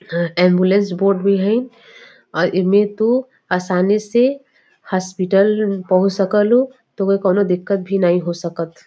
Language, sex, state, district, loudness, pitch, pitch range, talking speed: Bhojpuri, female, Uttar Pradesh, Varanasi, -17 LUFS, 195 Hz, 180-210 Hz, 135 wpm